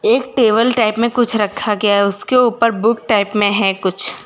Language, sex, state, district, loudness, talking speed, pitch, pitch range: Hindi, female, Gujarat, Valsad, -14 LUFS, 210 wpm, 220 Hz, 205-235 Hz